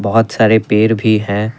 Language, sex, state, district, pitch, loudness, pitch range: Hindi, male, Assam, Kamrup Metropolitan, 110 Hz, -13 LUFS, 105-110 Hz